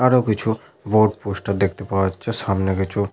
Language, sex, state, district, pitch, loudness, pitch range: Bengali, male, West Bengal, Malda, 100 Hz, -21 LUFS, 95-110 Hz